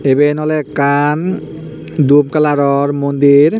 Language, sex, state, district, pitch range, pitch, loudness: Chakma, male, Tripura, Unakoti, 140-150 Hz, 145 Hz, -13 LUFS